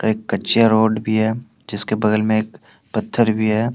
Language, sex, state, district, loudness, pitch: Hindi, male, Jharkhand, Deoghar, -18 LUFS, 110 Hz